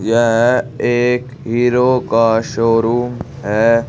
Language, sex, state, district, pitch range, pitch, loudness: Hindi, male, Uttar Pradesh, Saharanpur, 115-125 Hz, 120 Hz, -15 LUFS